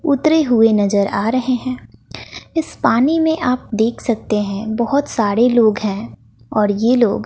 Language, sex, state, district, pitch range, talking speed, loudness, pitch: Hindi, female, Bihar, West Champaran, 210-255 Hz, 165 wpm, -16 LUFS, 230 Hz